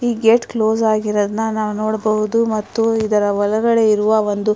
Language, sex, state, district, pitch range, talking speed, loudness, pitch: Kannada, female, Karnataka, Mysore, 210-225 Hz, 145 wpm, -17 LUFS, 215 Hz